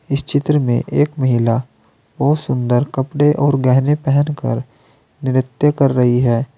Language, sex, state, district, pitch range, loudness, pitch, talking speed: Hindi, male, Uttar Pradesh, Saharanpur, 125-145 Hz, -16 LUFS, 135 Hz, 145 wpm